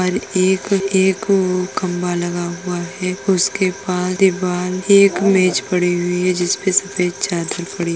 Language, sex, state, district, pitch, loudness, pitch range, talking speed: Hindi, female, Uttar Pradesh, Etah, 185 Hz, -17 LUFS, 180-190 Hz, 160 wpm